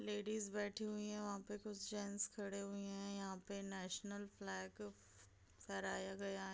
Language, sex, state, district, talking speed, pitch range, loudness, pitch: Hindi, female, Bihar, Madhepura, 185 wpm, 185-205 Hz, -47 LUFS, 200 Hz